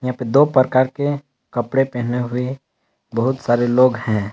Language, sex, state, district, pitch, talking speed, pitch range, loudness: Hindi, male, Jharkhand, Palamu, 125 Hz, 165 wpm, 120-135 Hz, -18 LUFS